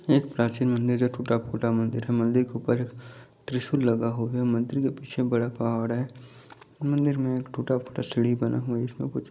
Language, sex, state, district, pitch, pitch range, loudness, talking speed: Hindi, male, Chhattisgarh, Bastar, 125 Hz, 115-130 Hz, -27 LUFS, 205 wpm